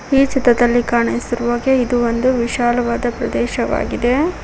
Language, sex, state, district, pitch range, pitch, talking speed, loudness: Kannada, female, Karnataka, Koppal, 240-255 Hz, 240 Hz, 95 wpm, -17 LUFS